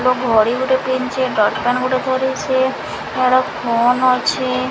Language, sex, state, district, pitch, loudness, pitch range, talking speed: Odia, female, Odisha, Sambalpur, 255 Hz, -17 LUFS, 240-260 Hz, 115 wpm